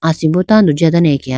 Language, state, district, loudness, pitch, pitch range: Idu Mishmi, Arunachal Pradesh, Lower Dibang Valley, -12 LUFS, 165 Hz, 150-175 Hz